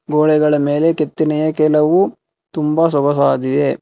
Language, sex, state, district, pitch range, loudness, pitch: Kannada, male, Karnataka, Bangalore, 145-155 Hz, -15 LUFS, 150 Hz